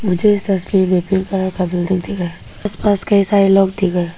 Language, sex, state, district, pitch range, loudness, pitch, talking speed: Hindi, female, Arunachal Pradesh, Papum Pare, 180-200 Hz, -15 LUFS, 190 Hz, 245 wpm